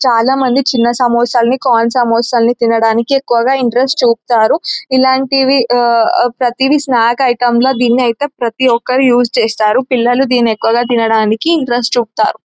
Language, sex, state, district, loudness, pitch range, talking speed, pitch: Telugu, male, Telangana, Nalgonda, -11 LUFS, 235-260 Hz, 125 wpm, 245 Hz